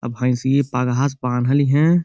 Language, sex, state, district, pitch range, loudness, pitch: Bhojpuri, male, Uttar Pradesh, Gorakhpur, 125-140 Hz, -19 LUFS, 130 Hz